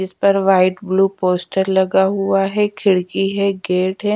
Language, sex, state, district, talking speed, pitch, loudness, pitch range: Hindi, female, Chhattisgarh, Raipur, 175 wpm, 190 Hz, -17 LUFS, 185-195 Hz